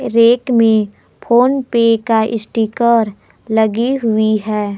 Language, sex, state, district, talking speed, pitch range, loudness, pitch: Hindi, female, Jharkhand, Palamu, 100 wpm, 220-235 Hz, -14 LUFS, 230 Hz